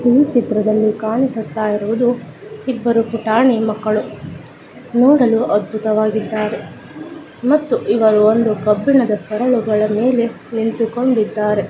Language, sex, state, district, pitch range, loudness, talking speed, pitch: Kannada, female, Karnataka, Raichur, 215-245 Hz, -16 LUFS, 85 wpm, 220 Hz